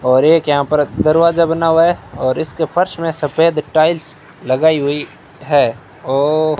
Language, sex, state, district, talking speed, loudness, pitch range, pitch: Hindi, male, Rajasthan, Bikaner, 175 wpm, -15 LUFS, 145-165 Hz, 155 Hz